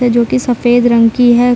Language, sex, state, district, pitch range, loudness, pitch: Hindi, female, Bihar, Gaya, 240-245 Hz, -11 LUFS, 245 Hz